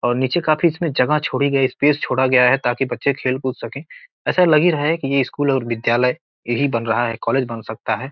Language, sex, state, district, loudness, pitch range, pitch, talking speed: Hindi, male, Bihar, Gopalganj, -18 LUFS, 120-145 Hz, 130 Hz, 260 wpm